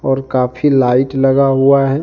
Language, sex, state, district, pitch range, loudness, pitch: Hindi, male, Jharkhand, Deoghar, 130-135 Hz, -13 LUFS, 135 Hz